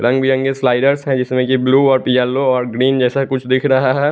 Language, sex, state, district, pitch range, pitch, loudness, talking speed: Hindi, male, Chandigarh, Chandigarh, 125-135 Hz, 130 Hz, -15 LUFS, 235 wpm